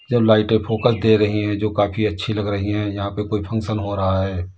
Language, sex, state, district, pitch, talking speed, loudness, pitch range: Hindi, male, Uttar Pradesh, Lalitpur, 105 Hz, 250 wpm, -20 LUFS, 100-110 Hz